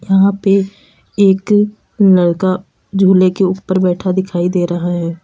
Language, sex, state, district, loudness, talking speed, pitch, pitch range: Hindi, female, Uttar Pradesh, Lalitpur, -14 LUFS, 135 wpm, 190 Hz, 180-195 Hz